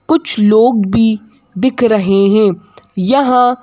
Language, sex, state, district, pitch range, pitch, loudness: Hindi, female, Madhya Pradesh, Bhopal, 210-250 Hz, 225 Hz, -12 LUFS